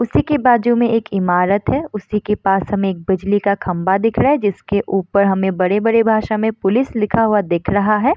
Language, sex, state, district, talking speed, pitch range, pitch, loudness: Hindi, female, Bihar, Samastipur, 220 wpm, 195-225 Hz, 205 Hz, -16 LUFS